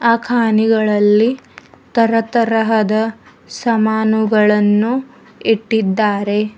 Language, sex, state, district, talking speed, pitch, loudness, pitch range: Kannada, female, Karnataka, Bidar, 45 wpm, 220 Hz, -15 LUFS, 215-230 Hz